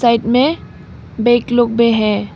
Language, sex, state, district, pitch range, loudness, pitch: Hindi, female, Arunachal Pradesh, Papum Pare, 225-240 Hz, -14 LUFS, 235 Hz